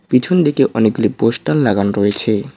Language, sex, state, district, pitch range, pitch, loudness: Bengali, male, West Bengal, Cooch Behar, 105-135 Hz, 115 Hz, -15 LUFS